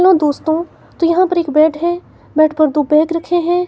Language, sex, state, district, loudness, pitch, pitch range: Hindi, female, Himachal Pradesh, Shimla, -15 LUFS, 335 Hz, 310-350 Hz